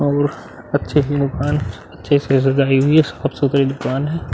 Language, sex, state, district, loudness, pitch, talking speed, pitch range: Hindi, male, Bihar, Vaishali, -17 LUFS, 140 Hz, 165 wpm, 135-145 Hz